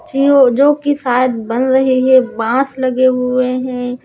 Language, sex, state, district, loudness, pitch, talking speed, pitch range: Hindi, female, Chhattisgarh, Raipur, -13 LUFS, 255 Hz, 150 wpm, 250-265 Hz